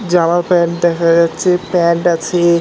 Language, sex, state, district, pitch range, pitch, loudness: Bengali, male, West Bengal, North 24 Parganas, 170-175 Hz, 170 Hz, -13 LUFS